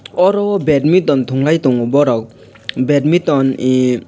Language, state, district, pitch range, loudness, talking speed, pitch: Kokborok, Tripura, West Tripura, 125-160 Hz, -14 LUFS, 115 wpm, 140 Hz